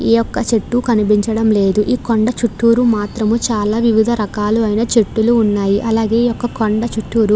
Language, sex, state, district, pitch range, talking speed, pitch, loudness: Telugu, female, Andhra Pradesh, Krishna, 210-230 Hz, 155 wpm, 225 Hz, -15 LUFS